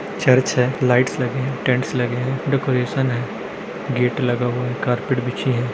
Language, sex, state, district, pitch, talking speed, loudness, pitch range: Hindi, male, Bihar, Darbhanga, 125 Hz, 175 wpm, -20 LUFS, 125-130 Hz